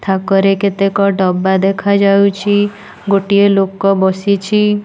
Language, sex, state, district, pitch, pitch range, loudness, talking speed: Odia, female, Odisha, Nuapada, 195 Hz, 195-200 Hz, -13 LUFS, 100 wpm